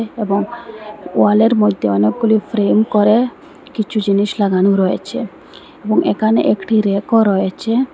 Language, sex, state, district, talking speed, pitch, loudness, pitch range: Bengali, female, Assam, Hailakandi, 115 wpm, 215 Hz, -15 LUFS, 200-225 Hz